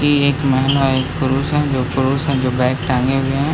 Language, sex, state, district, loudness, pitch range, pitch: Hindi, male, Bihar, Gaya, -17 LUFS, 130-140 Hz, 135 Hz